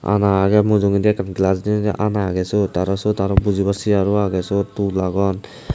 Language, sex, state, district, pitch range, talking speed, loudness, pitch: Chakma, male, Tripura, Unakoti, 95-105 Hz, 175 wpm, -18 LUFS, 100 Hz